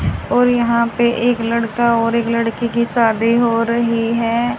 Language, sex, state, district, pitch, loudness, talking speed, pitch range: Hindi, female, Haryana, Jhajjar, 235 Hz, -16 LUFS, 170 wpm, 230-235 Hz